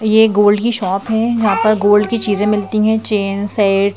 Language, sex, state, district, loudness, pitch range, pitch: Hindi, female, Madhya Pradesh, Bhopal, -14 LUFS, 205-220 Hz, 210 Hz